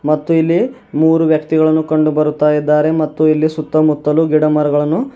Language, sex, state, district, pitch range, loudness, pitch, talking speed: Kannada, male, Karnataka, Bidar, 150-160 Hz, -14 LUFS, 155 Hz, 130 wpm